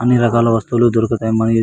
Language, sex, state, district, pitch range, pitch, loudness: Telugu, male, Andhra Pradesh, Anantapur, 115-120 Hz, 115 Hz, -15 LUFS